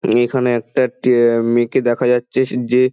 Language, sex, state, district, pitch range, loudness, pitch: Bengali, male, West Bengal, Dakshin Dinajpur, 120-125 Hz, -16 LUFS, 125 Hz